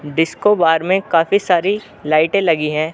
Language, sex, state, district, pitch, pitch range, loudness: Hindi, male, Uttar Pradesh, Jyotiba Phule Nagar, 165 Hz, 160-200 Hz, -16 LUFS